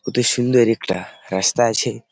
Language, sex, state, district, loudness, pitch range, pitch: Bengali, male, West Bengal, Malda, -18 LUFS, 115-125 Hz, 120 Hz